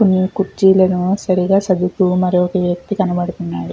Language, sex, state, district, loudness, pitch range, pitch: Telugu, female, Andhra Pradesh, Guntur, -16 LUFS, 180-190 Hz, 185 Hz